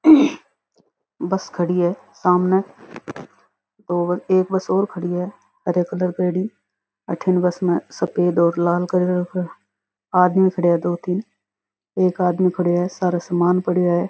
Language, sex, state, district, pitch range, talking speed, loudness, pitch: Rajasthani, female, Rajasthan, Nagaur, 175-185 Hz, 145 wpm, -20 LUFS, 180 Hz